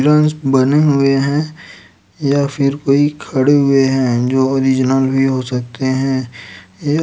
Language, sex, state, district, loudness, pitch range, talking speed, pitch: Hindi, male, Chhattisgarh, Raipur, -15 LUFS, 130-145 Hz, 155 wpm, 135 Hz